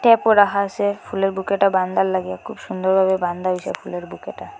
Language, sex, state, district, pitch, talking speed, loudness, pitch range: Bengali, female, Assam, Hailakandi, 190 Hz, 180 wpm, -20 LUFS, 180-200 Hz